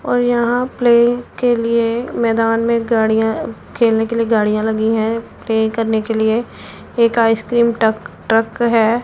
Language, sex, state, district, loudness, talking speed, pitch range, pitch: Hindi, female, Punjab, Pathankot, -16 LUFS, 155 wpm, 220-235 Hz, 230 Hz